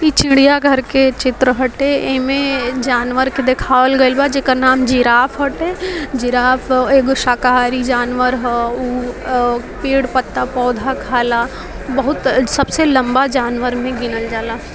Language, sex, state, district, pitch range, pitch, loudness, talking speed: Maithili, female, Bihar, Samastipur, 245-270 Hz, 255 Hz, -15 LUFS, 130 wpm